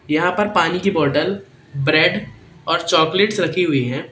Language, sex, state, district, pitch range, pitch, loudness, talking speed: Hindi, male, Madhya Pradesh, Katni, 140-180 Hz, 165 Hz, -17 LUFS, 160 wpm